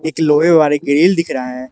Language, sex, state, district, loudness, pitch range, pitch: Hindi, male, Arunachal Pradesh, Lower Dibang Valley, -13 LUFS, 140-160 Hz, 150 Hz